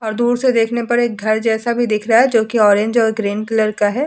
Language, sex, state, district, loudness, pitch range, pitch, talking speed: Hindi, female, Uttar Pradesh, Hamirpur, -16 LUFS, 215-240 Hz, 225 Hz, 295 wpm